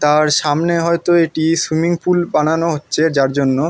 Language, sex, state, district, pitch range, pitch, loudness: Bengali, male, West Bengal, North 24 Parganas, 150-170 Hz, 160 Hz, -15 LUFS